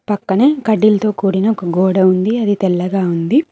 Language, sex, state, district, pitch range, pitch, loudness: Telugu, female, Telangana, Mahabubabad, 185-220 Hz, 200 Hz, -14 LUFS